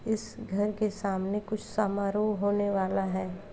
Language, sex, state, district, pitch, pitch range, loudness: Hindi, female, Uttar Pradesh, Varanasi, 205 Hz, 195-215 Hz, -30 LUFS